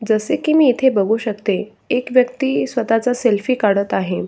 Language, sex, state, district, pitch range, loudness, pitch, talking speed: Marathi, male, Maharashtra, Solapur, 210-255 Hz, -17 LUFS, 235 Hz, 170 wpm